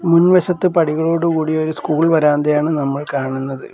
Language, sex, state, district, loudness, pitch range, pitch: Malayalam, male, Kerala, Kollam, -16 LUFS, 150-170 Hz, 155 Hz